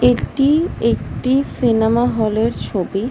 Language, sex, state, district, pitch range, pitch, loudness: Bengali, female, West Bengal, Jhargram, 205-255 Hz, 230 Hz, -17 LUFS